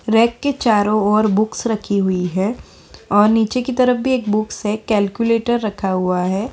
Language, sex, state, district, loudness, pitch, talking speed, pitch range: Hindi, female, Bihar, Begusarai, -17 LUFS, 215 Hz, 200 wpm, 205-230 Hz